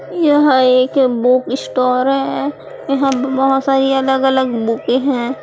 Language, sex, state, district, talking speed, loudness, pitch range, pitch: Hindi, female, Chhattisgarh, Raipur, 135 wpm, -14 LUFS, 255-270 Hz, 265 Hz